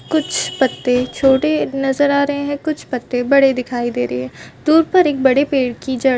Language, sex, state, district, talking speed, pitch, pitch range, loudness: Hindi, female, Chhattisgarh, Balrampur, 215 wpm, 270 Hz, 250-285 Hz, -16 LUFS